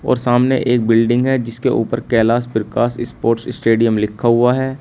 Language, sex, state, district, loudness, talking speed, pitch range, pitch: Hindi, male, Uttar Pradesh, Shamli, -16 LUFS, 175 wpm, 115-125 Hz, 120 Hz